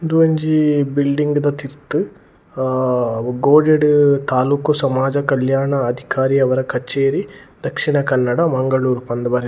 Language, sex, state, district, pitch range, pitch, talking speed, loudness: Tulu, male, Karnataka, Dakshina Kannada, 130-145 Hz, 135 Hz, 110 wpm, -17 LUFS